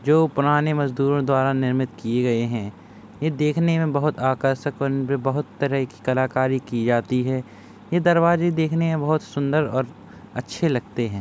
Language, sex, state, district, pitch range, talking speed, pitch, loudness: Hindi, male, Uttar Pradesh, Jalaun, 125-150 Hz, 160 wpm, 135 Hz, -22 LUFS